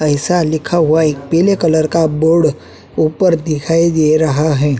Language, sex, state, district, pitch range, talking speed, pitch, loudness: Hindi, male, Uttarakhand, Tehri Garhwal, 155-165 Hz, 160 wpm, 160 Hz, -13 LUFS